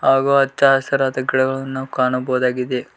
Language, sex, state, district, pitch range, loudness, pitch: Kannada, male, Karnataka, Koppal, 130-135 Hz, -18 LUFS, 130 Hz